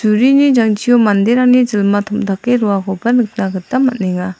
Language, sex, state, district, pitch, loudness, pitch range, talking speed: Garo, female, Meghalaya, South Garo Hills, 215 Hz, -13 LUFS, 195-245 Hz, 110 wpm